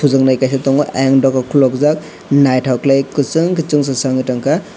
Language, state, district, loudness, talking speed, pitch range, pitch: Kokborok, Tripura, West Tripura, -14 LUFS, 175 wpm, 130-145 Hz, 135 Hz